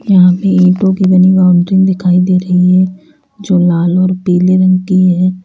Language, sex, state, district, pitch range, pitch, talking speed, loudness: Hindi, female, Uttar Pradesh, Lalitpur, 180-185 Hz, 185 Hz, 185 wpm, -10 LUFS